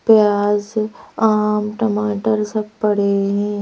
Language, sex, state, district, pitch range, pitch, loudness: Hindi, female, Madhya Pradesh, Bhopal, 205-215 Hz, 210 Hz, -18 LUFS